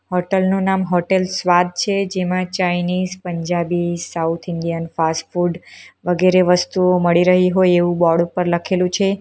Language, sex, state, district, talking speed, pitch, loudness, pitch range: Gujarati, female, Gujarat, Valsad, 145 wpm, 180 Hz, -18 LUFS, 175-185 Hz